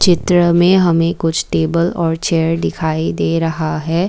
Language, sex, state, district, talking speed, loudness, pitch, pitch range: Hindi, female, Assam, Kamrup Metropolitan, 160 wpm, -15 LUFS, 165 Hz, 160-175 Hz